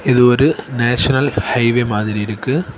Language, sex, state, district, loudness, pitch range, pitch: Tamil, male, Tamil Nadu, Kanyakumari, -15 LUFS, 110-130 Hz, 125 Hz